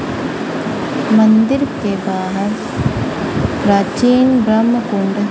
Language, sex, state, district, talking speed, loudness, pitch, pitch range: Hindi, female, Punjab, Kapurthala, 70 wpm, -15 LUFS, 220 Hz, 200-245 Hz